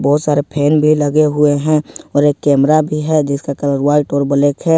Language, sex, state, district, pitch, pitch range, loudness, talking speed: Hindi, male, Jharkhand, Ranchi, 145 Hz, 140-150 Hz, -14 LUFS, 225 wpm